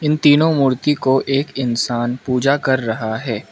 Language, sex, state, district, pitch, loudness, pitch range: Hindi, male, Mizoram, Aizawl, 130 Hz, -17 LUFS, 120-140 Hz